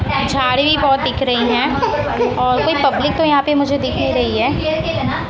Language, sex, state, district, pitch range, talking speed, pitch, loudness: Hindi, female, Maharashtra, Mumbai Suburban, 260-285 Hz, 190 wpm, 275 Hz, -16 LUFS